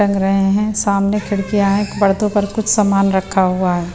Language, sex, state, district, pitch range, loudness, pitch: Hindi, female, Bihar, Patna, 195-205 Hz, -16 LUFS, 200 Hz